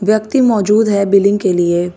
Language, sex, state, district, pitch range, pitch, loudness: Hindi, female, Delhi, New Delhi, 190-215 Hz, 200 Hz, -13 LUFS